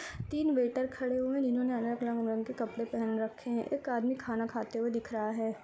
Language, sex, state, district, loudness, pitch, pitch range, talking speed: Hindi, female, Bihar, Samastipur, -33 LUFS, 235 Hz, 225-255 Hz, 225 wpm